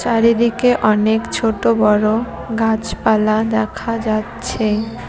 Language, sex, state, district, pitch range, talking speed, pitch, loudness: Bengali, female, West Bengal, Cooch Behar, 215-230 Hz, 85 wpm, 220 Hz, -16 LUFS